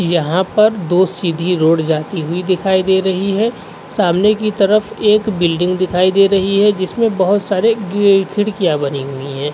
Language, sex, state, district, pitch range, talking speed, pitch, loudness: Hindi, male, Uttar Pradesh, Varanasi, 175-205 Hz, 175 wpm, 190 Hz, -15 LUFS